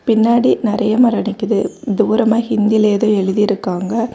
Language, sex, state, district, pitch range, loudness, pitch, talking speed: Tamil, female, Tamil Nadu, Kanyakumari, 210-230 Hz, -15 LUFS, 220 Hz, 115 wpm